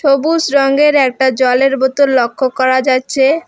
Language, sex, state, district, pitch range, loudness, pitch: Bengali, female, West Bengal, Alipurduar, 260-280 Hz, -12 LUFS, 270 Hz